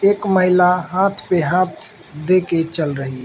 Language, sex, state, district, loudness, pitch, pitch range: Hindi, male, Mizoram, Aizawl, -17 LUFS, 180 Hz, 160-185 Hz